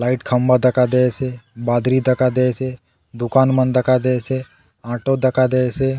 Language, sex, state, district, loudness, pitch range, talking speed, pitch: Halbi, male, Chhattisgarh, Bastar, -18 LUFS, 125-130 Hz, 140 wpm, 125 Hz